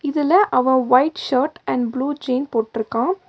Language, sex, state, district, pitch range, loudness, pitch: Tamil, female, Tamil Nadu, Nilgiris, 250-300 Hz, -19 LUFS, 260 Hz